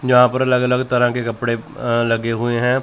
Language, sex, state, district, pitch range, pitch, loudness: Hindi, male, Chandigarh, Chandigarh, 120-125 Hz, 125 Hz, -18 LUFS